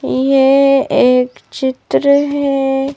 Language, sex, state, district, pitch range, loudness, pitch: Hindi, female, Madhya Pradesh, Bhopal, 265-280 Hz, -13 LUFS, 270 Hz